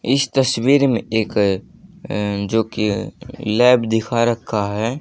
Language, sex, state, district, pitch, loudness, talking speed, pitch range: Hindi, male, Haryana, Jhajjar, 115 Hz, -18 LUFS, 130 wpm, 105-125 Hz